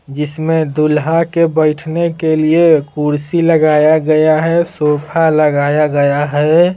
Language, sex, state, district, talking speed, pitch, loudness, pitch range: Hindi, male, Bihar, Patna, 125 wpm, 155 Hz, -13 LUFS, 150-165 Hz